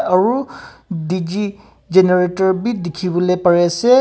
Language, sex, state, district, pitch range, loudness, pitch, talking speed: Nagamese, male, Nagaland, Kohima, 180-200 Hz, -16 LUFS, 185 Hz, 120 wpm